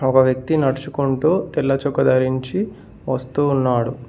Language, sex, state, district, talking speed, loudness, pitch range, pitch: Telugu, male, Telangana, Mahabubabad, 105 wpm, -19 LUFS, 130-140 Hz, 130 Hz